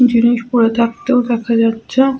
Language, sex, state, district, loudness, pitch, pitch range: Bengali, female, West Bengal, Jhargram, -14 LUFS, 235 Hz, 230-250 Hz